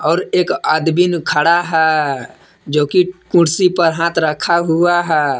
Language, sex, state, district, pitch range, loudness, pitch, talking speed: Hindi, male, Jharkhand, Palamu, 155-175 Hz, -14 LUFS, 170 Hz, 135 wpm